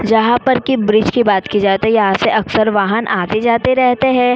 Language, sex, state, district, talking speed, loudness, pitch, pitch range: Hindi, female, Maharashtra, Chandrapur, 220 wpm, -14 LUFS, 220 Hz, 210-245 Hz